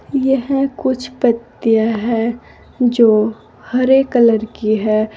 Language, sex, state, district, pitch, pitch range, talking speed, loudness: Hindi, female, Uttar Pradesh, Saharanpur, 235 Hz, 220-260 Hz, 105 wpm, -16 LUFS